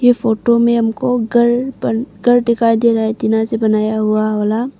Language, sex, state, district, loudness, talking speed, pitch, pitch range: Hindi, female, Arunachal Pradesh, Longding, -15 LUFS, 200 wpm, 230 Hz, 220-240 Hz